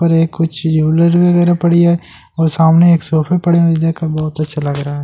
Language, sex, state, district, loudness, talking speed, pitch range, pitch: Hindi, male, Delhi, New Delhi, -13 LUFS, 275 wpm, 155-170 Hz, 165 Hz